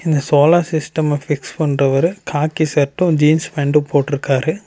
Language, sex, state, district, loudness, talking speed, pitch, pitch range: Tamil, male, Tamil Nadu, Namakkal, -16 LUFS, 130 wpm, 150 Hz, 145-160 Hz